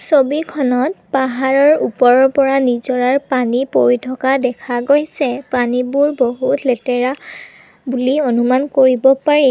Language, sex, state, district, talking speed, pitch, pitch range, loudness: Assamese, female, Assam, Kamrup Metropolitan, 105 wpm, 265 Hz, 250-280 Hz, -15 LUFS